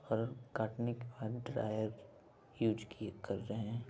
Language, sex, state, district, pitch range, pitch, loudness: Hindi, female, Bihar, Begusarai, 110-120 Hz, 115 Hz, -40 LUFS